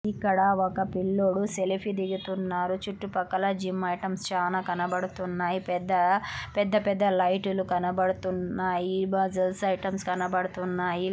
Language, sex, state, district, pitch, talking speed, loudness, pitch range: Telugu, female, Andhra Pradesh, Anantapur, 185 Hz, 145 wpm, -28 LUFS, 180-195 Hz